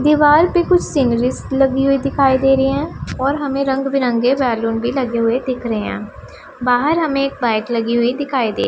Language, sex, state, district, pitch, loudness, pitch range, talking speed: Hindi, female, Punjab, Pathankot, 270 Hz, -16 LUFS, 240-275 Hz, 205 wpm